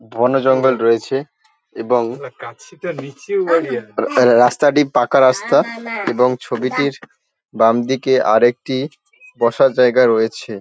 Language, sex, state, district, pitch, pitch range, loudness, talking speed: Bengali, male, West Bengal, Paschim Medinipur, 130 Hz, 120-140 Hz, -16 LUFS, 85 wpm